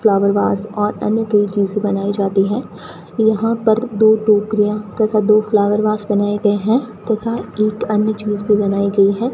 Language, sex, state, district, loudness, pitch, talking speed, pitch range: Hindi, female, Rajasthan, Bikaner, -16 LUFS, 210 Hz, 180 wpm, 205-220 Hz